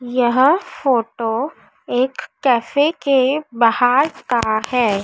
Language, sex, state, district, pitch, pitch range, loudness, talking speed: Hindi, female, Madhya Pradesh, Dhar, 250 Hz, 230-275 Hz, -17 LUFS, 95 wpm